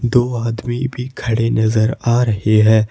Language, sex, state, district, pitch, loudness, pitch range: Hindi, male, Jharkhand, Ranchi, 115 Hz, -16 LUFS, 110-120 Hz